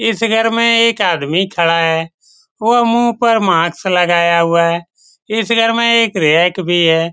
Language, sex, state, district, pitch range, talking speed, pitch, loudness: Hindi, male, Bihar, Saran, 170-230 Hz, 170 wpm, 190 Hz, -13 LUFS